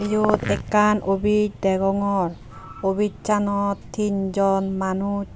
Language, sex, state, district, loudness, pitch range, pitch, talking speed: Chakma, female, Tripura, Unakoti, -22 LUFS, 195-210 Hz, 200 Hz, 100 wpm